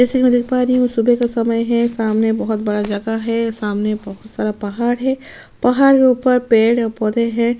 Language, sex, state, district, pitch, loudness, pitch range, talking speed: Hindi, female, Chhattisgarh, Sukma, 230 Hz, -16 LUFS, 220-245 Hz, 220 wpm